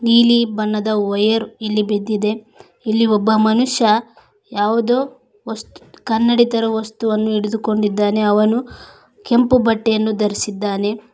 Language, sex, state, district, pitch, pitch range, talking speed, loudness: Kannada, female, Karnataka, Koppal, 220 Hz, 210-230 Hz, 95 wpm, -17 LUFS